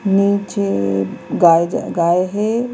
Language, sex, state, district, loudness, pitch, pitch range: Hindi, female, Madhya Pradesh, Bhopal, -16 LUFS, 195 Hz, 170-205 Hz